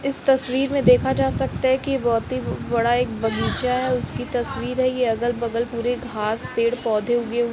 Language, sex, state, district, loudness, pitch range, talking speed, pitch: Hindi, female, Uttar Pradesh, Jalaun, -22 LUFS, 230-255 Hz, 205 wpm, 240 Hz